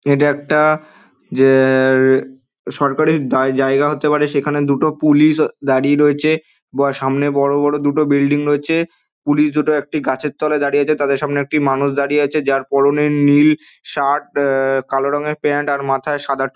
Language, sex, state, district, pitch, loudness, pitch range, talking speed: Bengali, male, West Bengal, Dakshin Dinajpur, 145 Hz, -16 LUFS, 140-150 Hz, 160 wpm